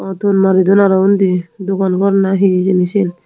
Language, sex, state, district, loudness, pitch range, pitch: Chakma, female, Tripura, Unakoti, -13 LUFS, 185-195 Hz, 190 Hz